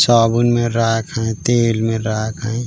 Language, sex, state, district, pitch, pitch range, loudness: Chhattisgarhi, male, Chhattisgarh, Raigarh, 115 Hz, 110-120 Hz, -17 LUFS